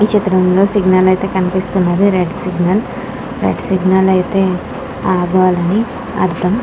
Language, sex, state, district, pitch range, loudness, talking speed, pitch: Telugu, female, Andhra Pradesh, Krishna, 185-200 Hz, -14 LUFS, 110 wpm, 185 Hz